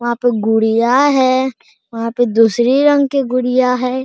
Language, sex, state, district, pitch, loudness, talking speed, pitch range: Hindi, male, Bihar, Araria, 250 Hz, -14 LUFS, 165 wpm, 230-260 Hz